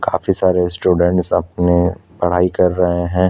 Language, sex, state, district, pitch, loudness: Hindi, male, Chhattisgarh, Korba, 90 Hz, -16 LUFS